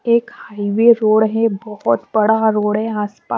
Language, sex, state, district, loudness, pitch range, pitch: Hindi, female, Bihar, West Champaran, -16 LUFS, 210-225 Hz, 215 Hz